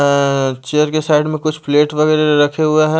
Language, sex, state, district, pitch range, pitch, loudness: Hindi, male, Chandigarh, Chandigarh, 145-155 Hz, 150 Hz, -14 LUFS